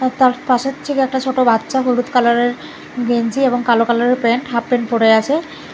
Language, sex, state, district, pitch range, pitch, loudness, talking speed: Bengali, female, Karnataka, Bangalore, 235-260 Hz, 245 Hz, -16 LUFS, 180 wpm